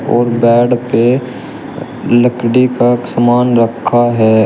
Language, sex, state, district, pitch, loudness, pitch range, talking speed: Hindi, male, Uttar Pradesh, Shamli, 120 Hz, -11 LUFS, 115-125 Hz, 105 wpm